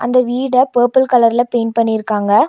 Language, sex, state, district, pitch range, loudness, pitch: Tamil, female, Tamil Nadu, Nilgiris, 230-250 Hz, -14 LUFS, 240 Hz